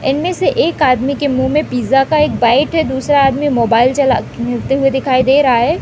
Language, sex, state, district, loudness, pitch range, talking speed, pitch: Hindi, female, Uttar Pradesh, Deoria, -13 LUFS, 255-290 Hz, 225 wpm, 270 Hz